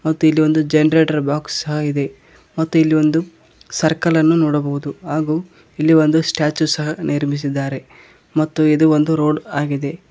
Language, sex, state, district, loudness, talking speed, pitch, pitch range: Kannada, male, Karnataka, Koppal, -17 LUFS, 135 wpm, 155 Hz, 150-160 Hz